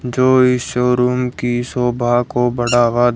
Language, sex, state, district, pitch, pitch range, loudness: Hindi, male, Haryana, Jhajjar, 125 Hz, 120-125 Hz, -16 LUFS